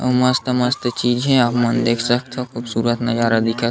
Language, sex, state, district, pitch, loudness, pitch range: Chhattisgarhi, male, Chhattisgarh, Sarguja, 120 Hz, -18 LUFS, 115-125 Hz